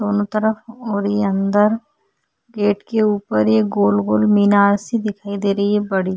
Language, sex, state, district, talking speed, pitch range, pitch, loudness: Hindi, female, Chhattisgarh, Sukma, 185 wpm, 195-215 Hz, 205 Hz, -18 LUFS